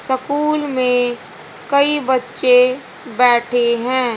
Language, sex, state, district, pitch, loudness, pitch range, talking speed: Hindi, female, Haryana, Charkhi Dadri, 255 Hz, -16 LUFS, 245-280 Hz, 85 wpm